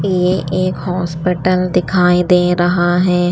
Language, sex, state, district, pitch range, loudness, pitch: Hindi, female, Himachal Pradesh, Shimla, 175-180 Hz, -14 LUFS, 180 Hz